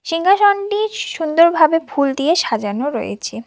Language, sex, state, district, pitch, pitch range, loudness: Bengali, female, West Bengal, Cooch Behar, 330 Hz, 280-395 Hz, -16 LUFS